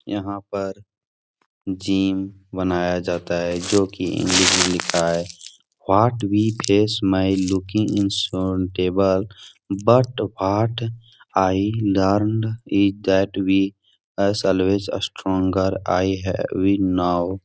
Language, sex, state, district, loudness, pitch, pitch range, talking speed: Hindi, male, Bihar, Supaul, -20 LUFS, 95 Hz, 95-100 Hz, 115 wpm